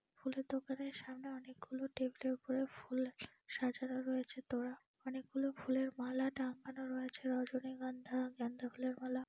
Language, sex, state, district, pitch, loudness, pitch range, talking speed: Bengali, female, West Bengal, Dakshin Dinajpur, 260 Hz, -43 LUFS, 255-265 Hz, 130 wpm